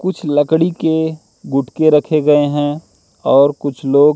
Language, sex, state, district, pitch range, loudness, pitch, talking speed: Hindi, male, Madhya Pradesh, Katni, 145-160 Hz, -15 LUFS, 150 Hz, 145 wpm